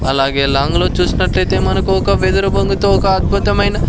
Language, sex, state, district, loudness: Telugu, male, Andhra Pradesh, Sri Satya Sai, -14 LUFS